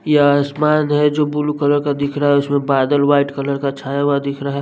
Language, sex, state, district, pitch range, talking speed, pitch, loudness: Hindi, male, Bihar, West Champaran, 140-145 Hz, 260 wpm, 145 Hz, -16 LUFS